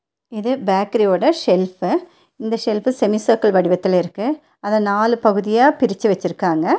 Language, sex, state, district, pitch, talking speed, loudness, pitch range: Tamil, female, Tamil Nadu, Nilgiris, 215 Hz, 130 wpm, -18 LUFS, 195-250 Hz